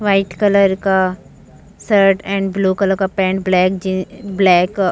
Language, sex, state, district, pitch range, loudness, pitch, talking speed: Hindi, female, Jharkhand, Jamtara, 185-195 Hz, -15 LUFS, 195 Hz, 170 wpm